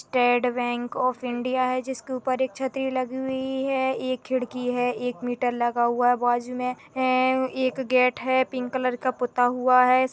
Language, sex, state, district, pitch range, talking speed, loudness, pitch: Hindi, female, Chhattisgarh, Bastar, 245-260 Hz, 185 wpm, -24 LUFS, 255 Hz